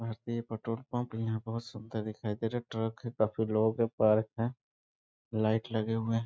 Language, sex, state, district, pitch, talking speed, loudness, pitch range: Hindi, male, Bihar, East Champaran, 115 Hz, 200 wpm, -33 LUFS, 110-115 Hz